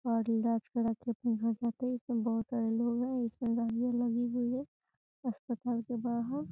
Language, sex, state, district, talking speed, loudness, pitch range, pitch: Hindi, female, Bihar, Gopalganj, 175 wpm, -34 LUFS, 230-245 Hz, 235 Hz